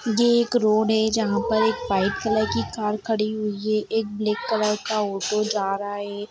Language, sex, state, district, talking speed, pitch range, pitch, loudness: Hindi, female, Bihar, Darbhanga, 210 wpm, 210-220 Hz, 215 Hz, -23 LUFS